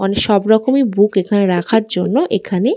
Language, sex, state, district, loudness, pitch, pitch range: Bengali, female, West Bengal, Dakshin Dinajpur, -15 LUFS, 205 Hz, 195-225 Hz